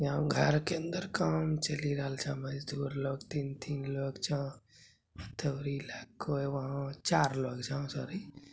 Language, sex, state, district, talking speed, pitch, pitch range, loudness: Hindi, male, Bihar, Bhagalpur, 105 wpm, 140 Hz, 135-150 Hz, -35 LUFS